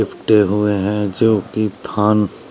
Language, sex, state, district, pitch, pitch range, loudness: Hindi, male, Uttar Pradesh, Shamli, 105 Hz, 105-110 Hz, -17 LUFS